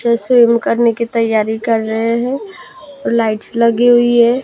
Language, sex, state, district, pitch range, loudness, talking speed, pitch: Hindi, female, Maharashtra, Gondia, 230-245 Hz, -14 LUFS, 150 wpm, 235 Hz